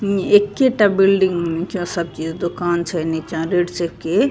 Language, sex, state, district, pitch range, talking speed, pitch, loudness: Maithili, female, Bihar, Begusarai, 170-195 Hz, 180 wpm, 175 Hz, -18 LUFS